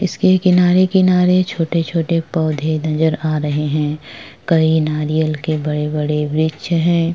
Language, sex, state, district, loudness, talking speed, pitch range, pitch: Hindi, female, Chhattisgarh, Korba, -16 LUFS, 115 wpm, 150-170 Hz, 160 Hz